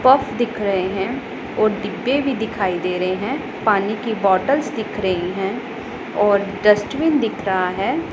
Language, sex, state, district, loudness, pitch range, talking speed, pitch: Hindi, female, Punjab, Pathankot, -20 LUFS, 195-245 Hz, 160 wpm, 210 Hz